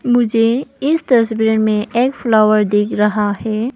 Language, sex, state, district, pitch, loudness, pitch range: Hindi, female, Arunachal Pradesh, Papum Pare, 225 Hz, -15 LUFS, 215-245 Hz